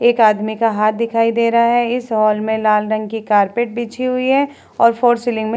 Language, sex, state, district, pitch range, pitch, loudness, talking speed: Hindi, female, Uttar Pradesh, Hamirpur, 215-240 Hz, 230 Hz, -16 LUFS, 245 wpm